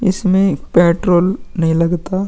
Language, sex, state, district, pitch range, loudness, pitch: Hindi, male, Bihar, Vaishali, 170-195 Hz, -15 LUFS, 185 Hz